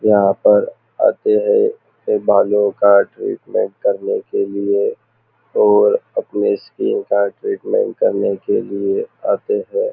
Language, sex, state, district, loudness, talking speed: Hindi, male, Maharashtra, Nagpur, -17 LUFS, 125 wpm